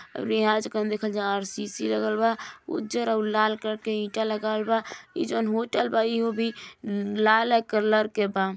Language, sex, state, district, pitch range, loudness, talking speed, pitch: Bhojpuri, female, Uttar Pradesh, Gorakhpur, 210-225 Hz, -26 LUFS, 160 wpm, 215 Hz